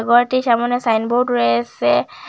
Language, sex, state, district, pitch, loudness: Bengali, female, Assam, Hailakandi, 235 Hz, -17 LUFS